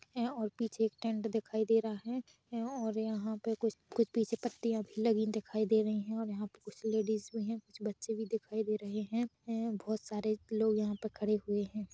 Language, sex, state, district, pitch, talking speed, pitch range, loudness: Hindi, female, Chhattisgarh, Rajnandgaon, 220 Hz, 205 wpm, 215-225 Hz, -36 LUFS